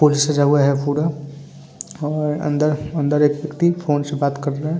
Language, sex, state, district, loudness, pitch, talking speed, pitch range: Hindi, male, Bihar, Vaishali, -19 LUFS, 150 Hz, 210 wpm, 145-150 Hz